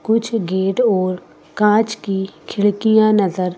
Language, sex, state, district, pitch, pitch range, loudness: Hindi, female, Madhya Pradesh, Bhopal, 205 Hz, 190-220 Hz, -17 LUFS